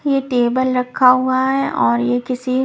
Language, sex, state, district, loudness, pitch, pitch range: Hindi, female, Punjab, Pathankot, -16 LUFS, 255 Hz, 245-260 Hz